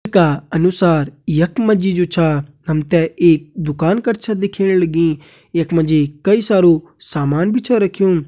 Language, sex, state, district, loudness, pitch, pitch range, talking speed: Hindi, male, Uttarakhand, Tehri Garhwal, -16 LUFS, 170 Hz, 155-195 Hz, 175 wpm